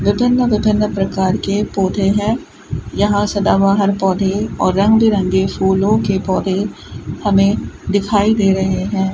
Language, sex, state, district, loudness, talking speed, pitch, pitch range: Hindi, female, Rajasthan, Bikaner, -15 LUFS, 130 wpm, 200 Hz, 190-210 Hz